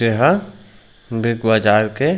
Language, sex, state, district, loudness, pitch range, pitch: Chhattisgarhi, male, Chhattisgarh, Raigarh, -17 LUFS, 105-135 Hz, 115 Hz